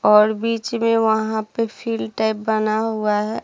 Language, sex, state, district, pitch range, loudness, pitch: Hindi, female, Bihar, Saharsa, 215-225 Hz, -20 LUFS, 220 Hz